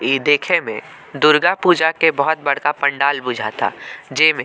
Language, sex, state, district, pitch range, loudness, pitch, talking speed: Bhojpuri, male, Bihar, Muzaffarpur, 140-160 Hz, -16 LUFS, 145 Hz, 160 wpm